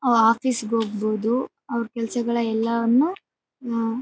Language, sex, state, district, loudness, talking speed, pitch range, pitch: Kannada, female, Karnataka, Bellary, -23 LUFS, 105 wpm, 225-245 Hz, 230 Hz